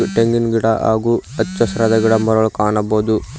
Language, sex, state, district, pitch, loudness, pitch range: Kannada, male, Karnataka, Koppal, 110 Hz, -16 LUFS, 110-115 Hz